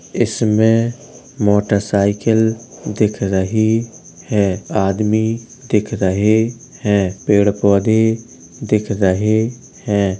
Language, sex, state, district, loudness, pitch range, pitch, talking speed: Hindi, male, Uttar Pradesh, Jalaun, -16 LUFS, 100-115 Hz, 105 Hz, 80 wpm